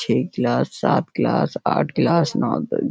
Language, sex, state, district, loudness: Hindi, male, Bihar, Kishanganj, -20 LUFS